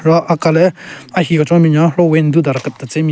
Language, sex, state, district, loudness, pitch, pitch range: Rengma, male, Nagaland, Kohima, -13 LUFS, 165 Hz, 155-170 Hz